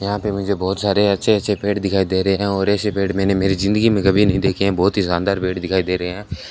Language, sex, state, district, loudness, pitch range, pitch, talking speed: Hindi, male, Rajasthan, Bikaner, -18 LUFS, 95-100 Hz, 100 Hz, 275 wpm